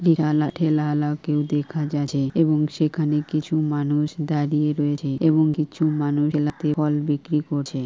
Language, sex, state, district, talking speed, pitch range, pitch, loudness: Bengali, female, West Bengal, Purulia, 150 wpm, 150-155 Hz, 150 Hz, -22 LUFS